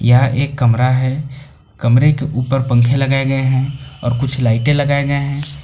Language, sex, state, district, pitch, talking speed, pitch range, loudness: Hindi, male, Jharkhand, Palamu, 135 Hz, 180 wpm, 125-140 Hz, -15 LUFS